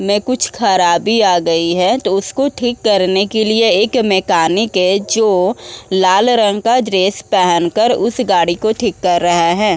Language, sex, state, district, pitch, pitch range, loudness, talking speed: Hindi, female, Uttar Pradesh, Muzaffarnagar, 200 Hz, 180-220 Hz, -13 LUFS, 180 wpm